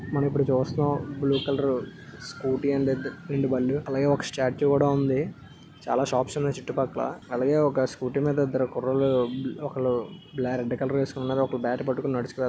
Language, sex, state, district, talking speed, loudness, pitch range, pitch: Telugu, male, Andhra Pradesh, Visakhapatnam, 135 wpm, -26 LUFS, 130-140 Hz, 135 Hz